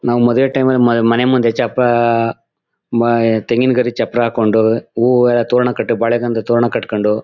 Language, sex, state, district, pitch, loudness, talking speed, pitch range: Kannada, male, Karnataka, Mysore, 120 Hz, -14 LUFS, 155 wpm, 115-125 Hz